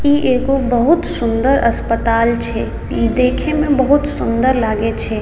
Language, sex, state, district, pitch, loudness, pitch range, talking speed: Maithili, female, Bihar, Samastipur, 250 Hz, -15 LUFS, 230-275 Hz, 140 wpm